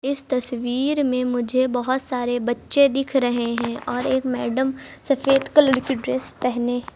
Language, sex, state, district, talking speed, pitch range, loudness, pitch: Hindi, male, Uttar Pradesh, Lucknow, 155 wpm, 245-270 Hz, -21 LUFS, 255 Hz